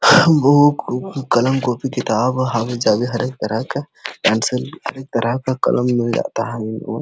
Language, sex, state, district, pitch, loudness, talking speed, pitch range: Hindi, male, Jharkhand, Sahebganj, 125 Hz, -18 LUFS, 135 wpm, 115-135 Hz